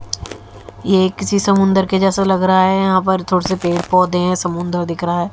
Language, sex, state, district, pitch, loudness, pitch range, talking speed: Hindi, female, Haryana, Jhajjar, 185 Hz, -16 LUFS, 175-190 Hz, 225 wpm